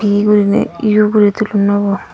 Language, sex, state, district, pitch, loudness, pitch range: Chakma, female, Tripura, Dhalai, 205 Hz, -13 LUFS, 205-210 Hz